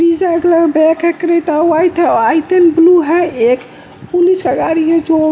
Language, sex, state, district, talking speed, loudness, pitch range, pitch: Hindi, male, Bihar, West Champaran, 190 wpm, -11 LUFS, 315-345 Hz, 335 Hz